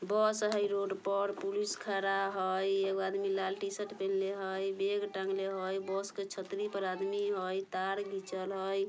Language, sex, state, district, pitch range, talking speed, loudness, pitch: Bajjika, female, Bihar, Vaishali, 190-200 Hz, 170 wpm, -35 LUFS, 195 Hz